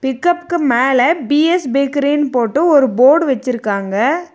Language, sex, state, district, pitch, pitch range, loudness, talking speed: Tamil, female, Tamil Nadu, Nilgiris, 275 Hz, 255-320 Hz, -14 LUFS, 110 wpm